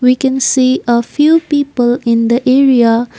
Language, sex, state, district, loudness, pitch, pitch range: English, female, Assam, Kamrup Metropolitan, -11 LUFS, 255 Hz, 240-275 Hz